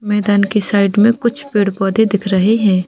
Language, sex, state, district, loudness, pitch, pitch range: Hindi, female, Chhattisgarh, Bilaspur, -14 LUFS, 205 Hz, 200-220 Hz